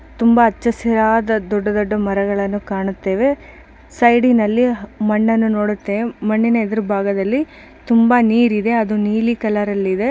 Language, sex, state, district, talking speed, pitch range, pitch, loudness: Kannada, female, Karnataka, Bijapur, 115 wpm, 205-235 Hz, 220 Hz, -16 LUFS